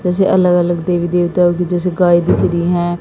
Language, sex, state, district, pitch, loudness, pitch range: Hindi, female, Haryana, Jhajjar, 175 Hz, -14 LUFS, 175-180 Hz